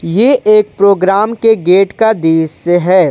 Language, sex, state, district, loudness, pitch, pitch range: Hindi, male, Jharkhand, Ranchi, -10 LUFS, 195 Hz, 175-215 Hz